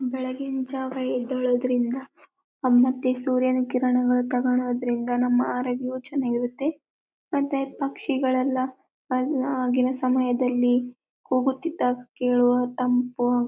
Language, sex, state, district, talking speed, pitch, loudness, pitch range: Kannada, female, Karnataka, Bellary, 80 wpm, 255 Hz, -24 LUFS, 250-265 Hz